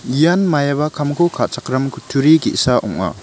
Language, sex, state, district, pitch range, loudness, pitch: Garo, male, Meghalaya, West Garo Hills, 135-160 Hz, -16 LUFS, 145 Hz